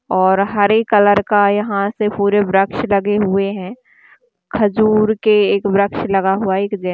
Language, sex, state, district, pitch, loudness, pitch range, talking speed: Hindi, female, Chhattisgarh, Kabirdham, 205 Hz, -15 LUFS, 195-210 Hz, 165 wpm